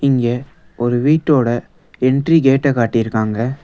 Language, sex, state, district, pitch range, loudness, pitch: Tamil, male, Tamil Nadu, Nilgiris, 120-140 Hz, -16 LUFS, 130 Hz